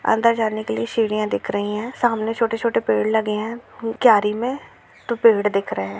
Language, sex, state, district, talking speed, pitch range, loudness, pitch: Hindi, female, Chhattisgarh, Rajnandgaon, 180 wpm, 210-230 Hz, -20 LUFS, 220 Hz